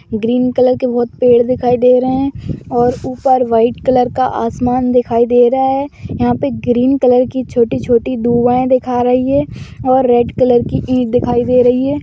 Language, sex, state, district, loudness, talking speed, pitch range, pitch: Magahi, female, Bihar, Gaya, -13 LUFS, 195 wpm, 245-255 Hz, 250 Hz